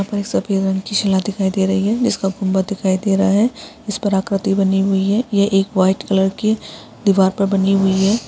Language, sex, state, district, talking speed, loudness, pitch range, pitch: Hindi, female, Chhattisgarh, Balrampur, 215 wpm, -17 LUFS, 190-205 Hz, 195 Hz